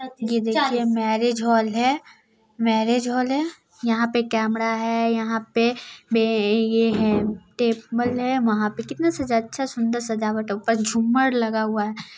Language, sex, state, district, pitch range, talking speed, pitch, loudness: Hindi, female, Bihar, Muzaffarpur, 220-240 Hz, 160 wpm, 230 Hz, -22 LUFS